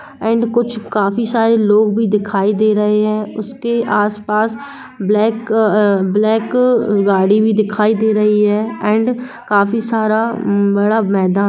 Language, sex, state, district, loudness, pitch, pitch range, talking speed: Hindi, female, Jharkhand, Jamtara, -15 LUFS, 215 Hz, 210-225 Hz, 130 wpm